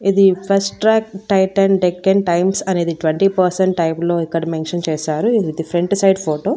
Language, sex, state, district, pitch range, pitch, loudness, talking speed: Telugu, female, Andhra Pradesh, Annamaya, 165-195 Hz, 185 Hz, -16 LUFS, 165 wpm